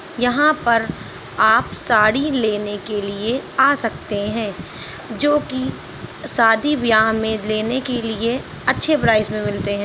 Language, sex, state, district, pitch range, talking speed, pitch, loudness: Hindi, female, Uttar Pradesh, Ghazipur, 215-260 Hz, 140 wpm, 225 Hz, -18 LUFS